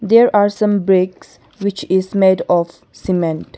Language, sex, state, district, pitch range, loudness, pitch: English, female, Arunachal Pradesh, Longding, 185-205 Hz, -15 LUFS, 190 Hz